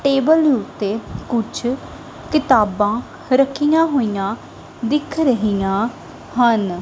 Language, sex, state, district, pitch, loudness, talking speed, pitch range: Punjabi, female, Punjab, Kapurthala, 245 Hz, -18 LUFS, 80 wpm, 210-280 Hz